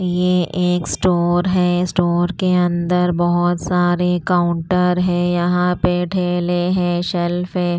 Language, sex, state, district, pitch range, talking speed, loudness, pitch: Hindi, female, Punjab, Pathankot, 175-180 Hz, 130 wpm, -17 LUFS, 180 Hz